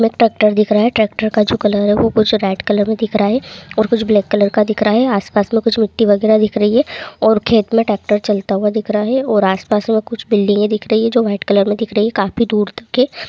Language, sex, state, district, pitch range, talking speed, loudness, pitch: Hindi, female, Bihar, Bhagalpur, 210-225 Hz, 280 wpm, -15 LUFS, 215 Hz